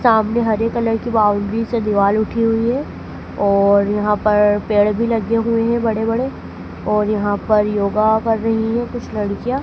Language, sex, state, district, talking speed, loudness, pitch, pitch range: Hindi, female, Madhya Pradesh, Dhar, 180 wpm, -17 LUFS, 220 Hz, 210-230 Hz